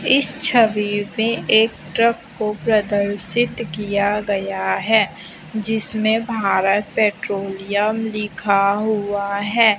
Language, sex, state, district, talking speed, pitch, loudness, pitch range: Hindi, female, Chhattisgarh, Raipur, 100 wpm, 210 Hz, -19 LUFS, 200-225 Hz